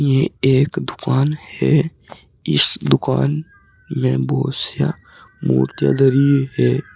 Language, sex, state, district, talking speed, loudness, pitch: Hindi, male, Uttar Pradesh, Saharanpur, 105 wpm, -18 LUFS, 135 Hz